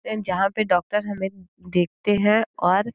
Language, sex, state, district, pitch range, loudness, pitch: Hindi, female, Uttar Pradesh, Gorakhpur, 180-210 Hz, -22 LUFS, 195 Hz